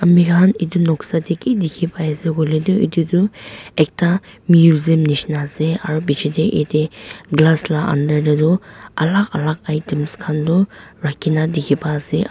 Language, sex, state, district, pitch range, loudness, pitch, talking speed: Nagamese, female, Nagaland, Dimapur, 150-175 Hz, -17 LUFS, 160 Hz, 155 wpm